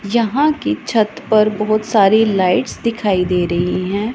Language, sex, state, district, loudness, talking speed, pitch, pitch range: Hindi, female, Punjab, Pathankot, -16 LUFS, 160 wpm, 215 Hz, 190-230 Hz